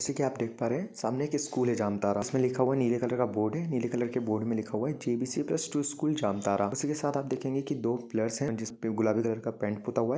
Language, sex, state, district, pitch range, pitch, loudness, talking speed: Hindi, male, Jharkhand, Jamtara, 110-135 Hz, 120 Hz, -31 LUFS, 295 wpm